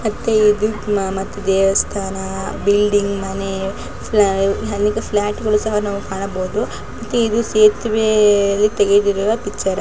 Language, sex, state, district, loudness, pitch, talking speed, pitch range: Kannada, female, Karnataka, Shimoga, -17 LUFS, 205 Hz, 90 wpm, 195-215 Hz